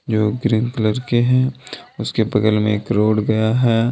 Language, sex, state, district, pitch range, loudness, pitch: Hindi, male, Jharkhand, Deoghar, 110-120 Hz, -18 LUFS, 110 Hz